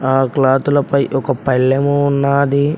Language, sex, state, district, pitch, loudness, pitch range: Telugu, male, Telangana, Mahabubabad, 140 Hz, -15 LUFS, 135-140 Hz